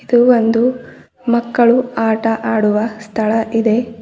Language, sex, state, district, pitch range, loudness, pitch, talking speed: Kannada, female, Karnataka, Bidar, 220-240 Hz, -15 LUFS, 225 Hz, 105 wpm